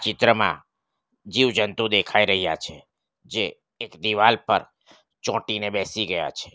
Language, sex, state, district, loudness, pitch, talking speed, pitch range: Gujarati, male, Gujarat, Valsad, -22 LUFS, 105 Hz, 120 wpm, 95-115 Hz